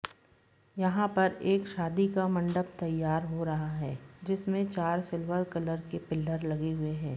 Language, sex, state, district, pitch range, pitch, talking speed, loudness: Hindi, female, Chhattisgarh, Rajnandgaon, 155-185 Hz, 170 Hz, 160 wpm, -32 LUFS